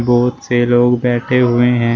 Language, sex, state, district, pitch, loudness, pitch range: Hindi, male, Uttar Pradesh, Shamli, 120 Hz, -14 LUFS, 120-125 Hz